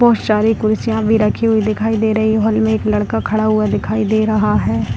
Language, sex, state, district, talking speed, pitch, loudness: Hindi, female, Bihar, Darbhanga, 230 wpm, 215 Hz, -15 LUFS